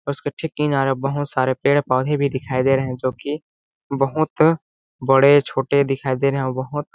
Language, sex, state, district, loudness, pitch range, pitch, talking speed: Hindi, male, Chhattisgarh, Balrampur, -20 LUFS, 130-145 Hz, 140 Hz, 200 wpm